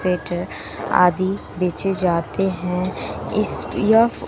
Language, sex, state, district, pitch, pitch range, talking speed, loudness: Hindi, female, Bihar, West Champaran, 185 Hz, 180-195 Hz, 85 wpm, -21 LUFS